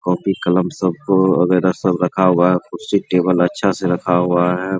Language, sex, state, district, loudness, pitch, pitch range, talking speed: Hindi, male, Bihar, Araria, -16 LUFS, 90 Hz, 90-95 Hz, 185 wpm